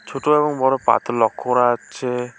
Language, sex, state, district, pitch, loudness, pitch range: Bengali, male, West Bengal, Alipurduar, 125 Hz, -19 LUFS, 120-135 Hz